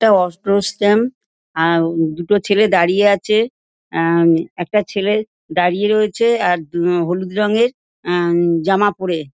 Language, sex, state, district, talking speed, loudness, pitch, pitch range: Bengali, female, West Bengal, Dakshin Dinajpur, 130 wpm, -16 LUFS, 190 Hz, 170-210 Hz